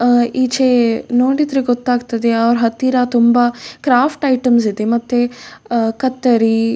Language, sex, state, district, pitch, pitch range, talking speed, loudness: Kannada, female, Karnataka, Dakshina Kannada, 245 Hz, 235-255 Hz, 95 wpm, -15 LUFS